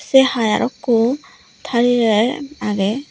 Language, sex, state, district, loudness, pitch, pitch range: Chakma, female, Tripura, Unakoti, -17 LUFS, 245 Hz, 225-270 Hz